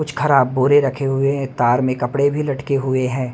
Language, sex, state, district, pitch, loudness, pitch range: Hindi, male, Haryana, Rohtak, 135 Hz, -18 LUFS, 130-140 Hz